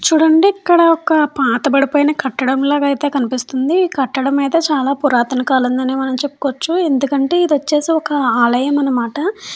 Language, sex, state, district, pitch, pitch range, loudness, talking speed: Telugu, female, Andhra Pradesh, Chittoor, 280 Hz, 265-315 Hz, -15 LUFS, 145 wpm